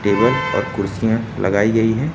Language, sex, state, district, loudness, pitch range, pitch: Hindi, male, Uttar Pradesh, Lucknow, -18 LUFS, 100-115 Hz, 110 Hz